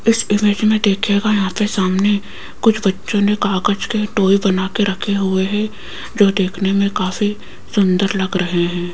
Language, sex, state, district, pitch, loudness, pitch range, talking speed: Hindi, female, Rajasthan, Jaipur, 200 Hz, -17 LUFS, 190-205 Hz, 170 wpm